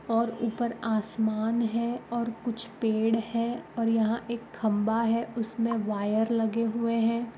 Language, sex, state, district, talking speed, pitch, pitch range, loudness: Magahi, female, Bihar, Gaya, 145 wpm, 230 Hz, 225-230 Hz, -28 LUFS